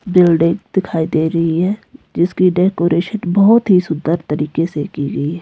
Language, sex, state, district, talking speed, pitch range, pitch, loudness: Hindi, female, Himachal Pradesh, Shimla, 165 wpm, 160-190 Hz, 170 Hz, -15 LUFS